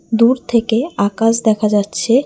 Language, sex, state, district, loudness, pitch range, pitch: Bengali, female, West Bengal, Alipurduar, -15 LUFS, 210-240 Hz, 230 Hz